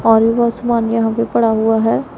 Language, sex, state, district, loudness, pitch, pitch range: Hindi, female, Punjab, Pathankot, -15 LUFS, 225 Hz, 225-230 Hz